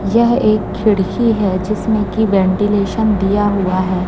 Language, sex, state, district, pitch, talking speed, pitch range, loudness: Hindi, female, Chhattisgarh, Raipur, 205 Hz, 145 wpm, 195-215 Hz, -15 LUFS